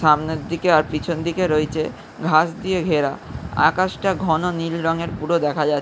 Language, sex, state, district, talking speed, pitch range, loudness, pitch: Bengali, male, West Bengal, Jhargram, 165 wpm, 155-170 Hz, -20 LUFS, 165 Hz